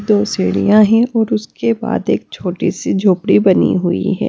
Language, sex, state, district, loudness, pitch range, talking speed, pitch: Hindi, female, Punjab, Kapurthala, -14 LUFS, 180-220 Hz, 180 wpm, 210 Hz